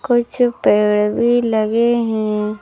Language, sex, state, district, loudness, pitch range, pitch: Hindi, female, Madhya Pradesh, Bhopal, -16 LUFS, 210-240 Hz, 225 Hz